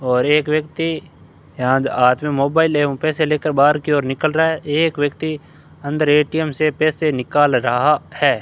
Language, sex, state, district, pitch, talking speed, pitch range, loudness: Hindi, male, Rajasthan, Bikaner, 150 Hz, 185 wpm, 140-155 Hz, -17 LUFS